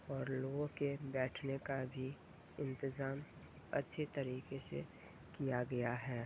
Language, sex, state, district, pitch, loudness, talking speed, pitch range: Hindi, male, Uttar Pradesh, Ghazipur, 135 Hz, -43 LUFS, 125 wpm, 130-140 Hz